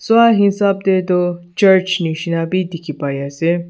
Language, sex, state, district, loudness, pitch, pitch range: Nagamese, male, Nagaland, Dimapur, -16 LUFS, 180 Hz, 165-195 Hz